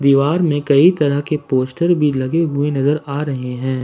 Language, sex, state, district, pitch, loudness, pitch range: Hindi, male, Jharkhand, Ranchi, 145 Hz, -16 LUFS, 135-155 Hz